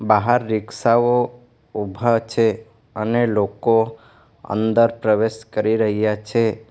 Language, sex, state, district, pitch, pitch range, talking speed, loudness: Gujarati, male, Gujarat, Valsad, 110 Hz, 110-115 Hz, 105 wpm, -19 LUFS